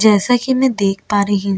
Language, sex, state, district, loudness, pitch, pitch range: Hindi, female, Chhattisgarh, Bastar, -15 LUFS, 205 Hz, 200-245 Hz